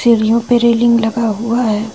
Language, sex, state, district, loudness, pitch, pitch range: Hindi, female, Jharkhand, Ranchi, -13 LUFS, 230 Hz, 225-235 Hz